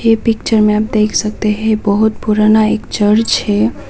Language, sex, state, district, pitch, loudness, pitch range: Hindi, female, Nagaland, Kohima, 215 Hz, -13 LUFS, 210-220 Hz